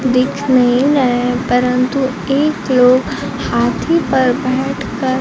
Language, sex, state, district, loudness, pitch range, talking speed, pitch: Hindi, male, Bihar, Kaimur, -14 LUFS, 250-270 Hz, 105 wpm, 255 Hz